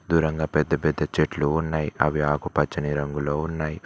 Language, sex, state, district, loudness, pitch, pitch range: Telugu, male, Telangana, Mahabubabad, -24 LUFS, 75 Hz, 75-80 Hz